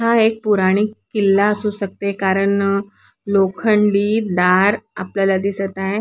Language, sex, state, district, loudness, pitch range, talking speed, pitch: Marathi, male, Maharashtra, Sindhudurg, -17 LUFS, 195-210 Hz, 120 wpm, 200 Hz